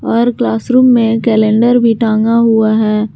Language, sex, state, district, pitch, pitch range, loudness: Hindi, female, Jharkhand, Garhwa, 225 Hz, 220-240 Hz, -11 LUFS